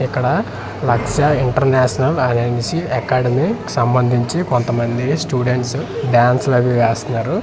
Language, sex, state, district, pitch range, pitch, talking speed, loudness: Telugu, male, Andhra Pradesh, Manyam, 120-145 Hz, 125 Hz, 90 wpm, -17 LUFS